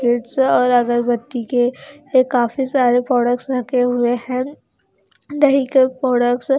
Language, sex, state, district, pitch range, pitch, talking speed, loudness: Hindi, female, Haryana, Charkhi Dadri, 245-265 Hz, 250 Hz, 125 wpm, -17 LUFS